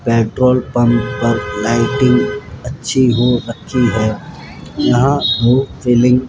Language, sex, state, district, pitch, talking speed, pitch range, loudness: Hindi, male, Rajasthan, Jaipur, 120 Hz, 115 wpm, 115-130 Hz, -14 LUFS